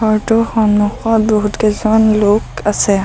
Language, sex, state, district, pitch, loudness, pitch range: Assamese, female, Assam, Sonitpur, 215 Hz, -13 LUFS, 210-220 Hz